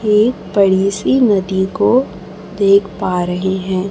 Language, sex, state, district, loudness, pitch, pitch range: Hindi, female, Chhattisgarh, Raipur, -15 LUFS, 195 Hz, 190-205 Hz